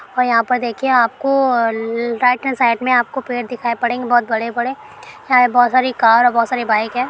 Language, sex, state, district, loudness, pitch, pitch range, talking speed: Hindi, female, Bihar, Araria, -16 LUFS, 245 Hz, 235-250 Hz, 230 wpm